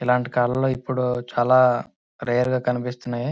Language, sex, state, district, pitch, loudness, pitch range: Telugu, male, Andhra Pradesh, Srikakulam, 125 Hz, -22 LUFS, 120-130 Hz